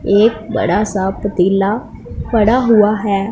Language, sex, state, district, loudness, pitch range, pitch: Hindi, female, Punjab, Pathankot, -14 LUFS, 195-220 Hz, 210 Hz